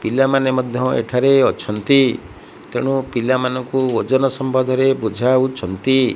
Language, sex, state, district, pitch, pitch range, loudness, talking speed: Odia, female, Odisha, Malkangiri, 130 Hz, 125-135 Hz, -17 LUFS, 95 wpm